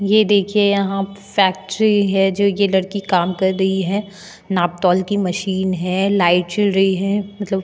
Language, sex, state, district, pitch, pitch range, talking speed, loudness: Hindi, female, Goa, North and South Goa, 195 Hz, 190-200 Hz, 175 wpm, -17 LUFS